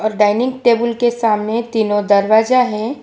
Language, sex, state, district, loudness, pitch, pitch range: Hindi, female, Gujarat, Valsad, -15 LUFS, 225 Hz, 210-240 Hz